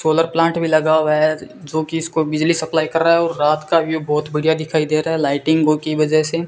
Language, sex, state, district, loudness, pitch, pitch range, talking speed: Hindi, male, Rajasthan, Bikaner, -17 LUFS, 155 Hz, 155-165 Hz, 260 wpm